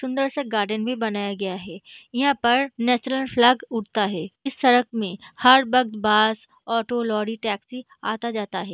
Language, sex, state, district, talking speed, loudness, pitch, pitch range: Hindi, female, Bihar, Gaya, 160 wpm, -22 LUFS, 230 Hz, 210-255 Hz